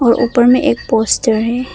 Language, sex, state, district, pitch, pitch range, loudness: Hindi, female, Arunachal Pradesh, Papum Pare, 240 Hz, 225-250 Hz, -13 LUFS